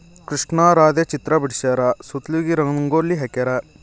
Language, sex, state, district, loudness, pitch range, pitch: Kannada, male, Karnataka, Koppal, -19 LUFS, 130-165 Hz, 150 Hz